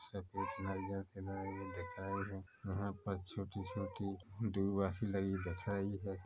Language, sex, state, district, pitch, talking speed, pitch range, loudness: Hindi, male, Chhattisgarh, Korba, 100 Hz, 115 wpm, 95-100 Hz, -42 LUFS